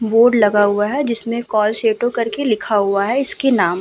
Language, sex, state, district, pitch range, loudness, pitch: Hindi, female, Uttar Pradesh, Muzaffarnagar, 210-240 Hz, -16 LUFS, 225 Hz